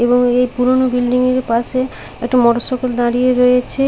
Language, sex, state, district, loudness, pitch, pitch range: Bengali, female, West Bengal, Paschim Medinipur, -15 LUFS, 250 Hz, 245-255 Hz